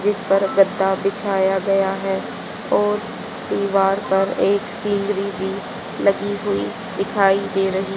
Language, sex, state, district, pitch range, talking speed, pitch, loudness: Hindi, female, Haryana, Charkhi Dadri, 195-200 Hz, 130 wpm, 195 Hz, -20 LUFS